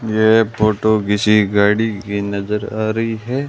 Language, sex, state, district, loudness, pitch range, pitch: Hindi, male, Rajasthan, Bikaner, -16 LUFS, 105-110 Hz, 110 Hz